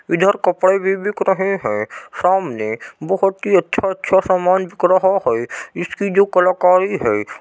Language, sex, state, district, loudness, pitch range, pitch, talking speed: Hindi, male, Uttar Pradesh, Jyotiba Phule Nagar, -17 LUFS, 180-195 Hz, 185 Hz, 155 wpm